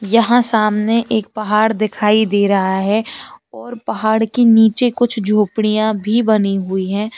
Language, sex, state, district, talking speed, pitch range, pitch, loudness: Hindi, female, Uttar Pradesh, Lalitpur, 150 wpm, 210-225 Hz, 215 Hz, -15 LUFS